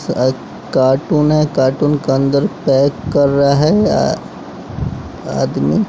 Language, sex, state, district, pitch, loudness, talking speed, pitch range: Hindi, male, Bihar, West Champaran, 140 Hz, -15 LUFS, 120 wpm, 135-150 Hz